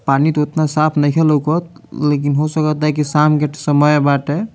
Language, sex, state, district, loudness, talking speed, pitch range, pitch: Bhojpuri, male, Bihar, Muzaffarpur, -15 LUFS, 200 wpm, 145-155 Hz, 150 Hz